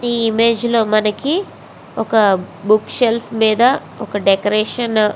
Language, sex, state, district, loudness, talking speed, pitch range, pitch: Telugu, female, Andhra Pradesh, Visakhapatnam, -16 LUFS, 130 wpm, 210-235 Hz, 225 Hz